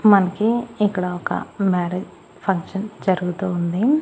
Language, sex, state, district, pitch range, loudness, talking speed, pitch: Telugu, female, Andhra Pradesh, Annamaya, 180-210 Hz, -22 LUFS, 105 wpm, 195 Hz